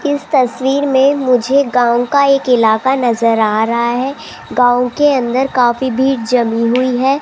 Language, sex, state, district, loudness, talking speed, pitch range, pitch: Hindi, female, Rajasthan, Jaipur, -13 LUFS, 165 wpm, 240-270 Hz, 255 Hz